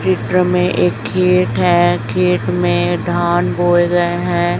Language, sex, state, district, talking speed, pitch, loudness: Hindi, female, Chhattisgarh, Raipur, 145 wpm, 170 Hz, -15 LUFS